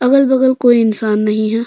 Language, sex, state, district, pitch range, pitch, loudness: Hindi, female, Jharkhand, Deoghar, 215-260 Hz, 235 Hz, -13 LUFS